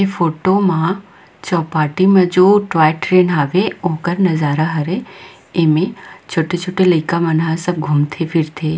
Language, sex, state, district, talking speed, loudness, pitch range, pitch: Chhattisgarhi, female, Chhattisgarh, Rajnandgaon, 135 wpm, -15 LUFS, 160-185 Hz, 170 Hz